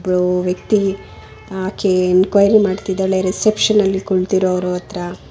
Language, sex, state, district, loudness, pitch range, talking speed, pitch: Kannada, female, Karnataka, Bangalore, -16 LUFS, 180-195 Hz, 90 wpm, 185 Hz